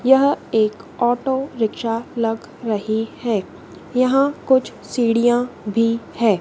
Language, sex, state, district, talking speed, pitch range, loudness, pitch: Hindi, female, Madhya Pradesh, Dhar, 110 wpm, 225-260 Hz, -20 LUFS, 235 Hz